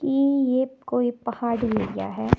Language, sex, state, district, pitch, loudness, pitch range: Hindi, female, Himachal Pradesh, Shimla, 250 Hz, -24 LUFS, 235-265 Hz